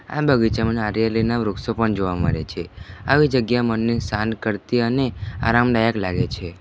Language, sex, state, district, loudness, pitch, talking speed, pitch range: Gujarati, male, Gujarat, Valsad, -21 LUFS, 115 Hz, 155 wpm, 100-120 Hz